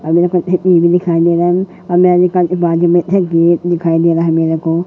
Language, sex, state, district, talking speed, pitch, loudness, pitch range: Hindi, female, Madhya Pradesh, Katni, 60 wpm, 175 Hz, -12 LUFS, 165-180 Hz